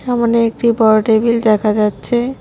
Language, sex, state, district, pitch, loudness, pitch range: Bengali, female, West Bengal, Cooch Behar, 230 Hz, -14 LUFS, 215-235 Hz